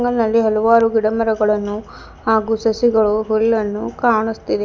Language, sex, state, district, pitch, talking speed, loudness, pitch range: Kannada, female, Karnataka, Bidar, 220 Hz, 90 wpm, -17 LUFS, 215-230 Hz